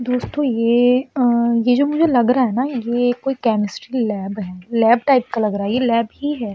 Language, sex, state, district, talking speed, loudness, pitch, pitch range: Hindi, female, Uttar Pradesh, Etah, 240 wpm, -18 LUFS, 240 Hz, 230-255 Hz